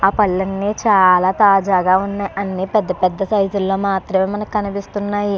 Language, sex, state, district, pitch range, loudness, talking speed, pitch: Telugu, female, Andhra Pradesh, Chittoor, 190-205 Hz, -17 LUFS, 155 wpm, 195 Hz